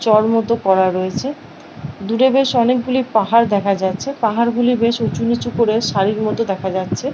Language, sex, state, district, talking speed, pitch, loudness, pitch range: Bengali, female, West Bengal, Paschim Medinipur, 170 wpm, 225 Hz, -17 LUFS, 200-240 Hz